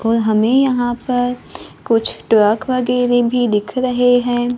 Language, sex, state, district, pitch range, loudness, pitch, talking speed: Hindi, female, Maharashtra, Gondia, 230-250 Hz, -16 LUFS, 245 Hz, 145 wpm